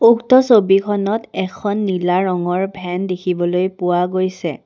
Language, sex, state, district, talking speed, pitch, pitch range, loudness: Assamese, female, Assam, Kamrup Metropolitan, 115 wpm, 185 Hz, 180-205 Hz, -17 LUFS